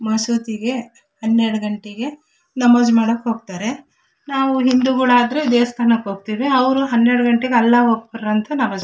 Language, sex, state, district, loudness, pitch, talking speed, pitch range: Kannada, female, Karnataka, Shimoga, -17 LUFS, 240 Hz, 130 wpm, 225-255 Hz